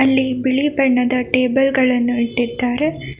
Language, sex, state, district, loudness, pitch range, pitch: Kannada, female, Karnataka, Bangalore, -17 LUFS, 245-265 Hz, 255 Hz